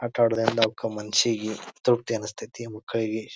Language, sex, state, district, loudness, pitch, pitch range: Kannada, male, Karnataka, Bijapur, -25 LUFS, 115 Hz, 110-115 Hz